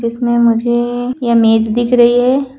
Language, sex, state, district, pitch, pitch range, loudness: Hindi, female, Uttar Pradesh, Shamli, 240 Hz, 235-245 Hz, -12 LUFS